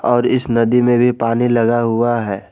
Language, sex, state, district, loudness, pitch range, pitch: Hindi, male, Jharkhand, Garhwa, -15 LUFS, 115-120 Hz, 120 Hz